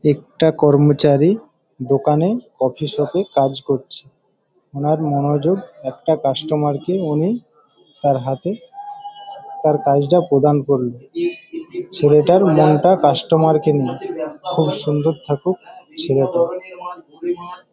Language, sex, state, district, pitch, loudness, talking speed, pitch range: Bengali, male, West Bengal, Paschim Medinipur, 155 Hz, -17 LUFS, 100 wpm, 145-180 Hz